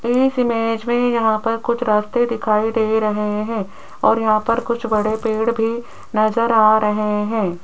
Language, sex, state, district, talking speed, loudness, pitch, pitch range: Hindi, female, Rajasthan, Jaipur, 175 wpm, -18 LUFS, 220 Hz, 215-235 Hz